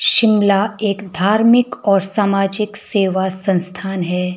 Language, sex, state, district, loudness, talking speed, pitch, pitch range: Hindi, male, Himachal Pradesh, Shimla, -16 LUFS, 110 wpm, 200 Hz, 190-210 Hz